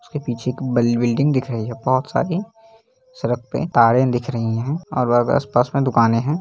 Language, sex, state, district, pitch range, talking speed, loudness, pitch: Hindi, male, Bihar, Lakhisarai, 120-150 Hz, 195 wpm, -19 LUFS, 130 Hz